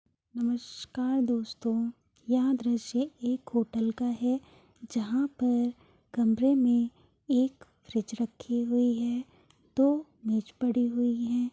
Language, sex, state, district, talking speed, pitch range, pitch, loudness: Hindi, female, Uttar Pradesh, Hamirpur, 115 wpm, 235-255 Hz, 240 Hz, -29 LUFS